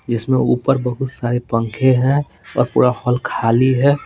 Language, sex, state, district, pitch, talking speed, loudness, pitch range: Hindi, male, Bihar, Patna, 130 Hz, 165 wpm, -17 LUFS, 120-135 Hz